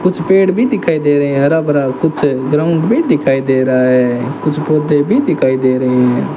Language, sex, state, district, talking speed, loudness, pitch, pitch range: Hindi, male, Rajasthan, Bikaner, 215 wpm, -13 LUFS, 145 Hz, 130-165 Hz